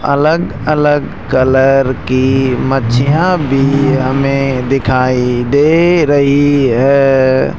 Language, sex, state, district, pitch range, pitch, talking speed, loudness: Hindi, male, Rajasthan, Jaipur, 130-145 Hz, 135 Hz, 80 wpm, -11 LUFS